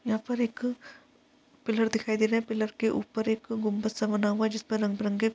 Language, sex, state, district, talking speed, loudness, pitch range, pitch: Hindi, female, Chhattisgarh, Balrampur, 225 wpm, -29 LUFS, 215-240 Hz, 220 Hz